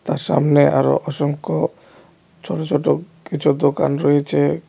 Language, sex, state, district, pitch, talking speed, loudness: Bengali, male, Tripura, West Tripura, 145 Hz, 115 wpm, -18 LUFS